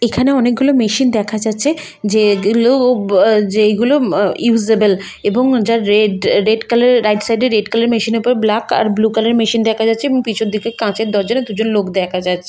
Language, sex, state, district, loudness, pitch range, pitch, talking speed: Bengali, female, West Bengal, Malda, -14 LUFS, 210-240 Hz, 225 Hz, 195 wpm